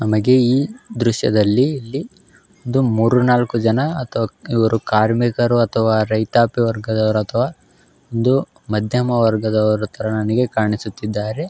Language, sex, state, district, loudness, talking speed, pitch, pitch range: Kannada, male, Karnataka, Belgaum, -18 LUFS, 110 wpm, 115 Hz, 110-125 Hz